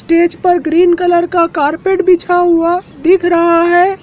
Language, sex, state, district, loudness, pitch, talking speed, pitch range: Hindi, male, Madhya Pradesh, Dhar, -11 LUFS, 345 Hz, 165 wpm, 335-360 Hz